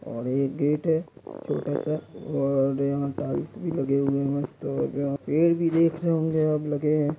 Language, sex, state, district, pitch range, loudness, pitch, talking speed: Angika, male, Bihar, Samastipur, 140-160 Hz, -26 LUFS, 145 Hz, 185 wpm